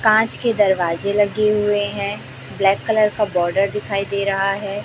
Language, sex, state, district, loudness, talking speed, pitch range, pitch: Hindi, female, Chhattisgarh, Raipur, -19 LUFS, 175 wpm, 195-210 Hz, 205 Hz